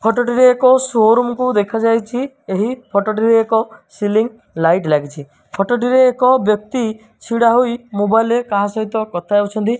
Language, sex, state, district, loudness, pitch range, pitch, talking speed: Odia, male, Odisha, Malkangiri, -15 LUFS, 205-245 Hz, 225 Hz, 145 wpm